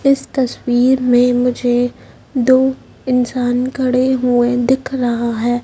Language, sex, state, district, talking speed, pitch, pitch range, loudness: Hindi, male, Madhya Pradesh, Dhar, 115 wpm, 250 Hz, 245-260 Hz, -15 LUFS